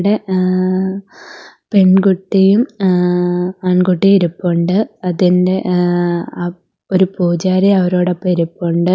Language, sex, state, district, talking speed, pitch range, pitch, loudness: Malayalam, female, Kerala, Kollam, 85 wpm, 180-190 Hz, 185 Hz, -14 LUFS